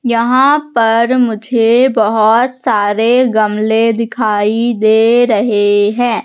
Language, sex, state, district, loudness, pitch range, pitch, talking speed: Hindi, female, Madhya Pradesh, Katni, -11 LUFS, 215-245 Hz, 230 Hz, 95 wpm